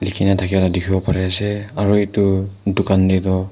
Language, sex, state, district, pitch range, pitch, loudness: Nagamese, male, Nagaland, Kohima, 95-100 Hz, 95 Hz, -18 LUFS